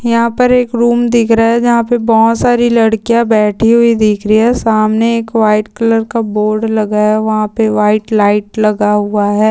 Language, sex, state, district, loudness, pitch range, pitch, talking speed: Hindi, female, Maharashtra, Dhule, -11 LUFS, 215-235 Hz, 225 Hz, 200 wpm